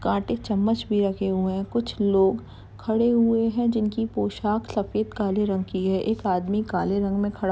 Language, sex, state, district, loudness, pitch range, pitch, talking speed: Hindi, female, Uttar Pradesh, Jalaun, -24 LUFS, 190-220 Hz, 200 Hz, 205 wpm